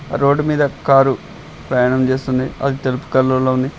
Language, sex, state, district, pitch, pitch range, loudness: Telugu, male, Telangana, Mahabubabad, 135 Hz, 130-145 Hz, -16 LUFS